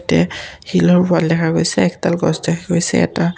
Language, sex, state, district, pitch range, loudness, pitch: Assamese, male, Assam, Kamrup Metropolitan, 165-175 Hz, -16 LUFS, 170 Hz